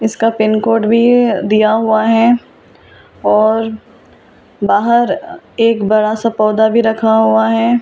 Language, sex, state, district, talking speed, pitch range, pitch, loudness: Hindi, female, Delhi, New Delhi, 130 wpm, 215-230 Hz, 225 Hz, -12 LUFS